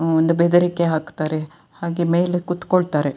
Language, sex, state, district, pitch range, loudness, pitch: Kannada, female, Karnataka, Dakshina Kannada, 160-175 Hz, -20 LUFS, 170 Hz